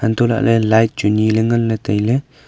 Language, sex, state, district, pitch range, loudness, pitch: Wancho, male, Arunachal Pradesh, Longding, 110-120 Hz, -16 LUFS, 115 Hz